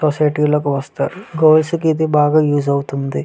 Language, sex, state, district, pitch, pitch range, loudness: Telugu, male, Andhra Pradesh, Visakhapatnam, 150 Hz, 140-155 Hz, -16 LUFS